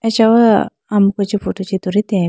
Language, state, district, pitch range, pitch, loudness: Idu Mishmi, Arunachal Pradesh, Lower Dibang Valley, 195-225 Hz, 205 Hz, -15 LUFS